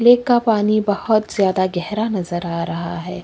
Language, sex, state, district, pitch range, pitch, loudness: Hindi, female, Chhattisgarh, Kabirdham, 175-220 Hz, 200 Hz, -19 LUFS